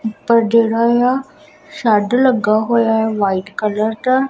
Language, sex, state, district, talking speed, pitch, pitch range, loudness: Punjabi, female, Punjab, Kapurthala, 140 wpm, 230 Hz, 215-255 Hz, -15 LUFS